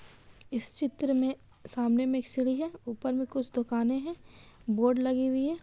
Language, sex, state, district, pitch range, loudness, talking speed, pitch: Hindi, female, Bihar, Kishanganj, 245-270 Hz, -30 LUFS, 180 wpm, 260 Hz